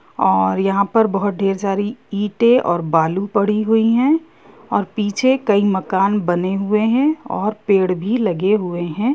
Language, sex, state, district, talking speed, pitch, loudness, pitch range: Hindi, female, Jharkhand, Sahebganj, 165 wpm, 205 Hz, -17 LUFS, 190-225 Hz